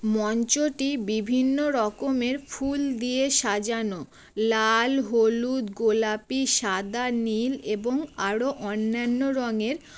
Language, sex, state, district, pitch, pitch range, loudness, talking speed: Bengali, female, West Bengal, Jalpaiguri, 240 Hz, 220-270 Hz, -25 LUFS, 95 wpm